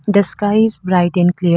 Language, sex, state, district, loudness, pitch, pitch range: English, female, Arunachal Pradesh, Lower Dibang Valley, -15 LUFS, 185 Hz, 175-205 Hz